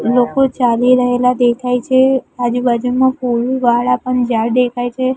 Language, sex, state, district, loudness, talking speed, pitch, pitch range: Gujarati, female, Gujarat, Gandhinagar, -14 LUFS, 125 wpm, 250 Hz, 245-255 Hz